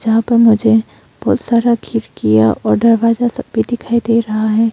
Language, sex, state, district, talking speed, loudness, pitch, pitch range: Hindi, female, Arunachal Pradesh, Longding, 165 wpm, -14 LUFS, 230 Hz, 220-235 Hz